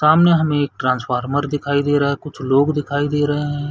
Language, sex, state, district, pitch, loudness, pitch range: Hindi, male, Chhattisgarh, Bilaspur, 145 Hz, -18 LUFS, 140-150 Hz